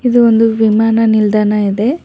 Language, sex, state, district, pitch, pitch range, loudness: Kannada, female, Karnataka, Bangalore, 225 Hz, 215-230 Hz, -11 LUFS